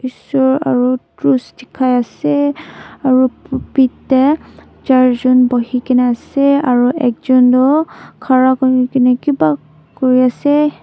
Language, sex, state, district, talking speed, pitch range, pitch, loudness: Nagamese, female, Nagaland, Dimapur, 135 wpm, 250-270 Hz, 255 Hz, -13 LUFS